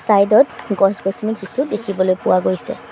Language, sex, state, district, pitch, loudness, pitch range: Assamese, male, Assam, Sonitpur, 200 Hz, -17 LUFS, 185-215 Hz